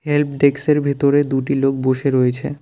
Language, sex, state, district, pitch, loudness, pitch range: Bengali, male, West Bengal, Cooch Behar, 140 Hz, -17 LUFS, 135-145 Hz